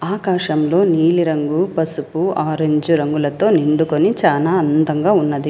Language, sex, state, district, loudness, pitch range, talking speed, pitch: Telugu, female, Telangana, Hyderabad, -16 LUFS, 150-170 Hz, 110 wpm, 155 Hz